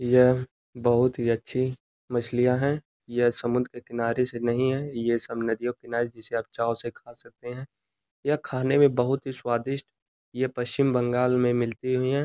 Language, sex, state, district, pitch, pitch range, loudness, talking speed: Hindi, male, Uttar Pradesh, Gorakhpur, 120 Hz, 120-130 Hz, -26 LUFS, 185 wpm